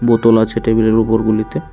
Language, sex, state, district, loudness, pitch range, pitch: Bengali, male, Tripura, West Tripura, -14 LUFS, 110-115 Hz, 110 Hz